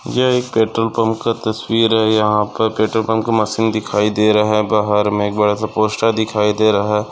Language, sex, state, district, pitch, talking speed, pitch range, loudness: Hindi, male, Maharashtra, Aurangabad, 110 Hz, 200 wpm, 105-110 Hz, -16 LUFS